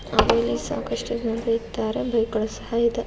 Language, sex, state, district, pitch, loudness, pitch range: Kannada, female, Karnataka, Chamarajanagar, 230 Hz, -24 LUFS, 225-230 Hz